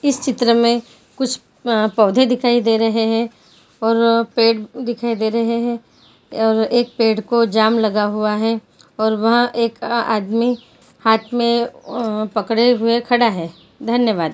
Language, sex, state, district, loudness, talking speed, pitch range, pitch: Hindi, female, Chhattisgarh, Bilaspur, -17 LUFS, 150 wpm, 220-235 Hz, 230 Hz